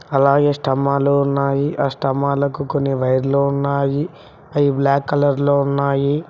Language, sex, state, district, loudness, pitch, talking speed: Telugu, male, Telangana, Mahabubabad, -18 LUFS, 140 Hz, 125 wpm